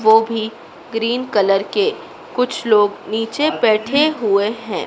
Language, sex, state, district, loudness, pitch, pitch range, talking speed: Hindi, female, Madhya Pradesh, Dhar, -17 LUFS, 225 Hz, 215-255 Hz, 135 wpm